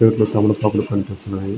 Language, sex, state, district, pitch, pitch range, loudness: Telugu, male, Andhra Pradesh, Srikakulam, 105 Hz, 100-105 Hz, -19 LUFS